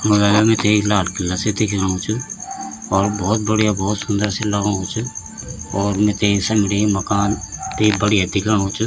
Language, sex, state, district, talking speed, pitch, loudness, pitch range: Garhwali, male, Uttarakhand, Tehri Garhwal, 160 wpm, 105 Hz, -18 LUFS, 100-110 Hz